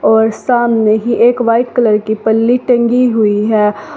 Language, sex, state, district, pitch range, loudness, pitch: Hindi, female, Uttar Pradesh, Saharanpur, 215-240 Hz, -12 LUFS, 230 Hz